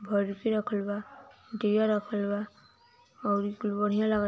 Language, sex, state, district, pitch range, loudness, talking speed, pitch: Hindi, female, Uttar Pradesh, Ghazipur, 205-220 Hz, -30 LUFS, 155 wpm, 210 Hz